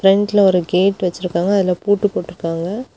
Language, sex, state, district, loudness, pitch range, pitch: Tamil, female, Tamil Nadu, Kanyakumari, -17 LUFS, 175-200 Hz, 190 Hz